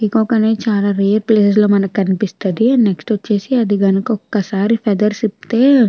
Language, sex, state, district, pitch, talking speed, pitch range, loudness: Telugu, female, Andhra Pradesh, Chittoor, 210 Hz, 155 wpm, 200-225 Hz, -15 LUFS